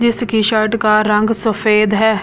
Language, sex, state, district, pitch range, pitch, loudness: Hindi, female, Delhi, New Delhi, 215-220 Hz, 220 Hz, -14 LUFS